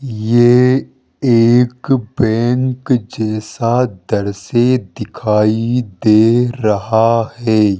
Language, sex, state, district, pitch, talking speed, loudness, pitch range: Hindi, male, Rajasthan, Jaipur, 115 Hz, 70 wpm, -14 LUFS, 110-125 Hz